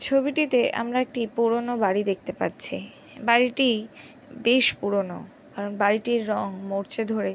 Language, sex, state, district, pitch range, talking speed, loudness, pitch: Bengali, female, West Bengal, Jhargram, 205-250 Hz, 130 wpm, -24 LUFS, 230 Hz